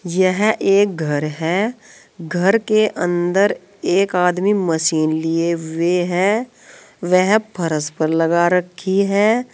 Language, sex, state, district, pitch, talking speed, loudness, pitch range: Hindi, female, Uttar Pradesh, Saharanpur, 180 Hz, 120 wpm, -17 LUFS, 165-205 Hz